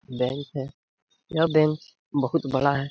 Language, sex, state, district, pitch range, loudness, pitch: Hindi, male, Bihar, Lakhisarai, 135-160 Hz, -25 LUFS, 140 Hz